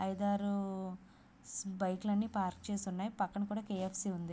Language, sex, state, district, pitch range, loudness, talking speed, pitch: Telugu, female, Andhra Pradesh, Visakhapatnam, 190-205 Hz, -38 LUFS, 140 wpm, 195 Hz